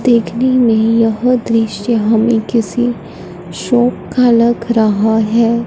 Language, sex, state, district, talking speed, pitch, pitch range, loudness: Hindi, female, Punjab, Fazilka, 115 wpm, 230 Hz, 220-240 Hz, -13 LUFS